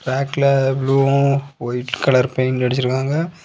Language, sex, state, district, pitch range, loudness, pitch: Tamil, male, Tamil Nadu, Kanyakumari, 130-140 Hz, -18 LUFS, 135 Hz